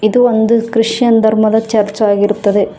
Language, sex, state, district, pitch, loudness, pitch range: Kannada, female, Karnataka, Bangalore, 220 Hz, -12 LUFS, 210-230 Hz